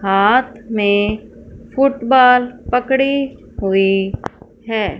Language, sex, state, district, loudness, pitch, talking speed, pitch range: Hindi, female, Punjab, Fazilka, -16 LUFS, 240 Hz, 70 wpm, 205-260 Hz